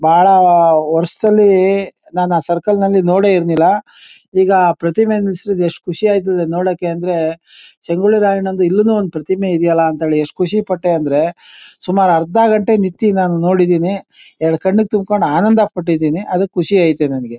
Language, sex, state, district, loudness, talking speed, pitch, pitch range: Kannada, male, Karnataka, Mysore, -14 LUFS, 140 wpm, 180 Hz, 170-195 Hz